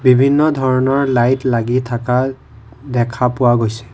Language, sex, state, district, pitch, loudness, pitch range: Assamese, male, Assam, Kamrup Metropolitan, 125 Hz, -15 LUFS, 120-130 Hz